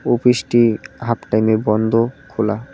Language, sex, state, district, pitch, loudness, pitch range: Bengali, male, West Bengal, Cooch Behar, 115 Hz, -17 LUFS, 110-120 Hz